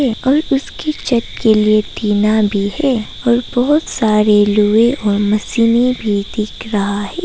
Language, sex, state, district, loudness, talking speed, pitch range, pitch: Hindi, female, Arunachal Pradesh, Papum Pare, -15 LUFS, 150 wpm, 210-250 Hz, 220 Hz